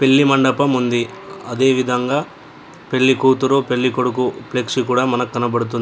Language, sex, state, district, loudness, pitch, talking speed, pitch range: Telugu, male, Telangana, Adilabad, -17 LUFS, 130 Hz, 105 wpm, 125-130 Hz